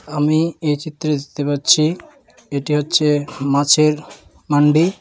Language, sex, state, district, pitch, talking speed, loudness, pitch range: Bengali, female, West Bengal, Dakshin Dinajpur, 150 Hz, 110 wpm, -17 LUFS, 145-155 Hz